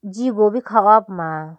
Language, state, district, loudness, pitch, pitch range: Idu Mishmi, Arunachal Pradesh, Lower Dibang Valley, -16 LUFS, 210 Hz, 170-220 Hz